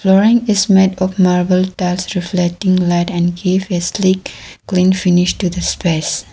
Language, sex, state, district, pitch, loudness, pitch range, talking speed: English, female, Arunachal Pradesh, Lower Dibang Valley, 185 Hz, -14 LUFS, 180-190 Hz, 135 wpm